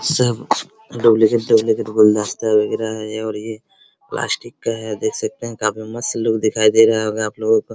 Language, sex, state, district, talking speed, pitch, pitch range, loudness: Hindi, male, Bihar, Araria, 200 wpm, 110 Hz, 110-115 Hz, -18 LUFS